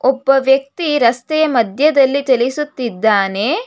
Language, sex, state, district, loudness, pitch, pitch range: Kannada, female, Karnataka, Bangalore, -15 LUFS, 270 Hz, 240-295 Hz